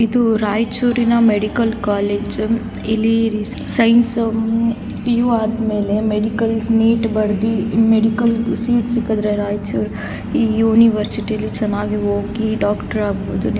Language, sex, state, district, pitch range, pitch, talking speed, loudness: Kannada, female, Karnataka, Raichur, 210-230 Hz, 220 Hz, 110 wpm, -17 LUFS